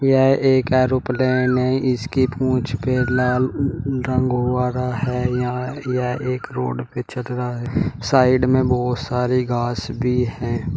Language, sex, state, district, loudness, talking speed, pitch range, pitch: Hindi, male, Uttar Pradesh, Shamli, -20 LUFS, 150 wpm, 125-130 Hz, 125 Hz